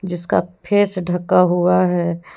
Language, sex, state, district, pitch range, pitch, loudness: Hindi, female, Jharkhand, Deoghar, 175-185 Hz, 180 Hz, -17 LUFS